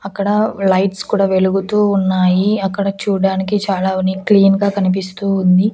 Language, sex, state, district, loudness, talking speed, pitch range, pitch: Telugu, female, Andhra Pradesh, Annamaya, -15 LUFS, 125 wpm, 190-200 Hz, 195 Hz